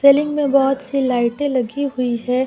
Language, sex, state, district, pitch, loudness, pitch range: Hindi, female, Jharkhand, Deoghar, 270 Hz, -18 LUFS, 250-280 Hz